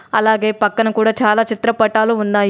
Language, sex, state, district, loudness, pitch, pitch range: Telugu, female, Telangana, Adilabad, -15 LUFS, 220 Hz, 215-225 Hz